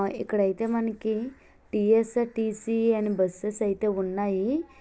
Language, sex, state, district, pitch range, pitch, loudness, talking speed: Telugu, female, Andhra Pradesh, Visakhapatnam, 205-230 Hz, 220 Hz, -27 LUFS, 110 wpm